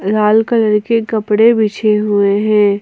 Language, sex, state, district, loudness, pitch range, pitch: Hindi, female, Jharkhand, Ranchi, -13 LUFS, 210-220 Hz, 215 Hz